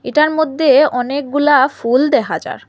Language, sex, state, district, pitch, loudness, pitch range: Bengali, female, Assam, Hailakandi, 290 Hz, -14 LUFS, 270-300 Hz